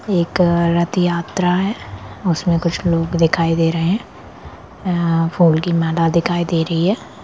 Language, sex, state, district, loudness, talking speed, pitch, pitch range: Hindi, female, Bihar, Darbhanga, -17 LUFS, 160 wpm, 170 Hz, 165-175 Hz